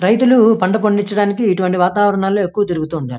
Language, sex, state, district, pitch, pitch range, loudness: Telugu, male, Andhra Pradesh, Krishna, 205 Hz, 185-210 Hz, -14 LUFS